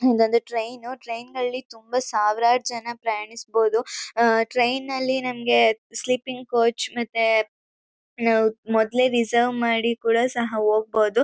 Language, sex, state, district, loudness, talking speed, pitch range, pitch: Kannada, female, Karnataka, Chamarajanagar, -22 LUFS, 105 wpm, 225-245 Hz, 235 Hz